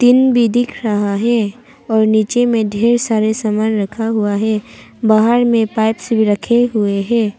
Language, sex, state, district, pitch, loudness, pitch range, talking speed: Hindi, female, Arunachal Pradesh, Papum Pare, 220 Hz, -15 LUFS, 215-235 Hz, 160 wpm